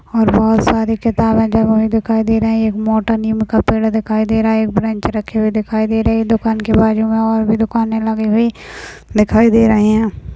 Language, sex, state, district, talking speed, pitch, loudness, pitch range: Hindi, female, Rajasthan, Churu, 205 wpm, 220 Hz, -14 LUFS, 220-225 Hz